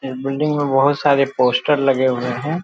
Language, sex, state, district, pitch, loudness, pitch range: Hindi, male, Bihar, Muzaffarpur, 135 Hz, -17 LUFS, 130-145 Hz